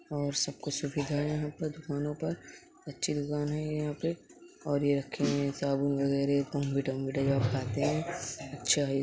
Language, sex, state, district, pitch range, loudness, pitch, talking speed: Hindi, male, Uttar Pradesh, Hamirpur, 140-150 Hz, -32 LUFS, 145 Hz, 185 wpm